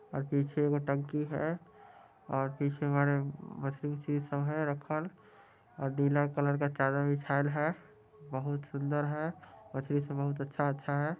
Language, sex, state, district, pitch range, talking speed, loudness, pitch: Hindi, male, Bihar, Muzaffarpur, 140-150 Hz, 150 wpm, -33 LUFS, 145 Hz